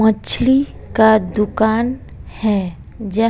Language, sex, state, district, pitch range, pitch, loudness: Hindi, female, Bihar, West Champaran, 210-230 Hz, 220 Hz, -16 LUFS